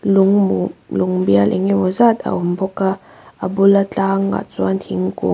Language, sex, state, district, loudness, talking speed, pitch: Mizo, female, Mizoram, Aizawl, -17 LUFS, 190 wpm, 190 Hz